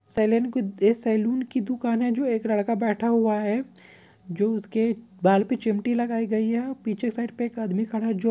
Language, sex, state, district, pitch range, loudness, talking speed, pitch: Hindi, male, Jharkhand, Sahebganj, 215-235 Hz, -25 LUFS, 215 wpm, 225 Hz